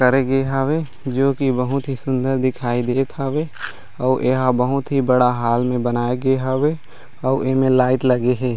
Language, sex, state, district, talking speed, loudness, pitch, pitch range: Chhattisgarhi, male, Chhattisgarh, Raigarh, 190 wpm, -19 LUFS, 130 Hz, 125-135 Hz